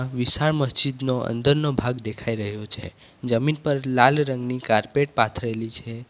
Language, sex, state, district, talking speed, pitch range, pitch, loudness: Gujarati, male, Gujarat, Valsad, 140 wpm, 115-140 Hz, 125 Hz, -22 LUFS